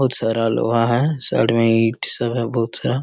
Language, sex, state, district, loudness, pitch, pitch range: Hindi, male, Bihar, Jamui, -17 LUFS, 115 Hz, 115-120 Hz